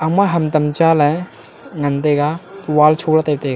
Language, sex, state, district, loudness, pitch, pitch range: Wancho, male, Arunachal Pradesh, Longding, -16 LUFS, 155 Hz, 150-165 Hz